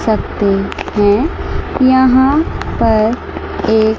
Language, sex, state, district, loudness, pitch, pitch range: Hindi, female, Chandigarh, Chandigarh, -14 LUFS, 220 Hz, 210-260 Hz